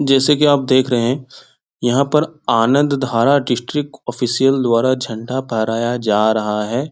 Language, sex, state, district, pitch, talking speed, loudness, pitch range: Hindi, male, Bihar, Jahanabad, 125 Hz, 155 wpm, -16 LUFS, 115-140 Hz